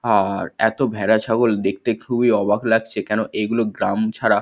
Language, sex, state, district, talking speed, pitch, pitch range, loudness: Bengali, male, West Bengal, Kolkata, 165 wpm, 110 Hz, 105-120 Hz, -19 LUFS